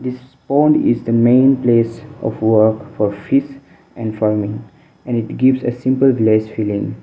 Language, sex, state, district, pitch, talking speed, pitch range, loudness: English, male, Mizoram, Aizawl, 120 Hz, 160 wpm, 110-135 Hz, -16 LUFS